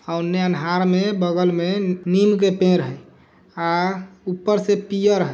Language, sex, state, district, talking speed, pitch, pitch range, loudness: Hindi, male, Bihar, Darbhanga, 145 wpm, 185 Hz, 175-195 Hz, -20 LUFS